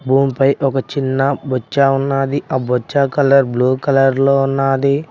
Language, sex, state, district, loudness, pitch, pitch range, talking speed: Telugu, male, Telangana, Mahabubabad, -15 LUFS, 135 Hz, 135-140 Hz, 140 wpm